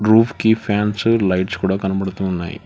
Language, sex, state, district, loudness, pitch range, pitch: Telugu, male, Telangana, Hyderabad, -18 LUFS, 95-110 Hz, 100 Hz